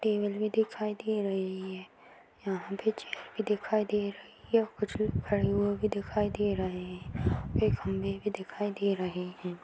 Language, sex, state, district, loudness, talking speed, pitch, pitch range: Kumaoni, female, Uttarakhand, Uttarkashi, -32 LUFS, 180 wpm, 200 Hz, 185-210 Hz